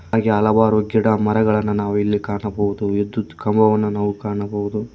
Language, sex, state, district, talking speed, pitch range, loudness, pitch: Kannada, male, Karnataka, Koppal, 120 wpm, 105-110 Hz, -19 LUFS, 105 Hz